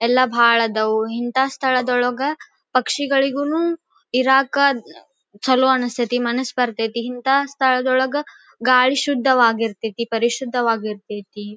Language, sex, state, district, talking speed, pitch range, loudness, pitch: Kannada, female, Karnataka, Dharwad, 95 wpm, 235-270 Hz, -19 LUFS, 255 Hz